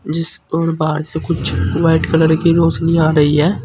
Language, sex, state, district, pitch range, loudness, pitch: Hindi, male, Uttar Pradesh, Saharanpur, 155-165 Hz, -15 LUFS, 160 Hz